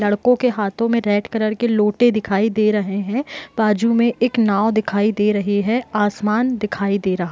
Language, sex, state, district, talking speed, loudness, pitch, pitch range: Hindi, female, Bihar, Muzaffarpur, 205 wpm, -18 LUFS, 215 Hz, 205-235 Hz